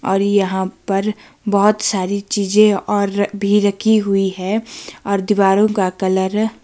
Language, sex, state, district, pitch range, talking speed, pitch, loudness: Hindi, female, Himachal Pradesh, Shimla, 195-210 Hz, 145 wpm, 200 Hz, -17 LUFS